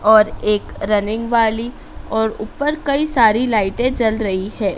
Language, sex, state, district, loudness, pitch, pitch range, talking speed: Hindi, female, Madhya Pradesh, Dhar, -17 LUFS, 220 Hz, 215-240 Hz, 150 wpm